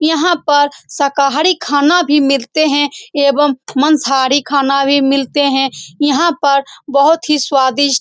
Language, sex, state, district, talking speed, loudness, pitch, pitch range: Hindi, female, Bihar, Saran, 140 wpm, -13 LUFS, 285 Hz, 275-300 Hz